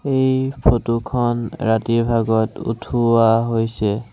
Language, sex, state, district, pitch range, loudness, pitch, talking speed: Assamese, male, Assam, Sonitpur, 115-120 Hz, -19 LUFS, 115 Hz, 85 wpm